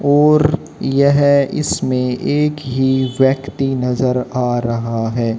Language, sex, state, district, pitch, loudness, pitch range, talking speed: Hindi, male, Haryana, Jhajjar, 130 Hz, -16 LUFS, 125-140 Hz, 110 wpm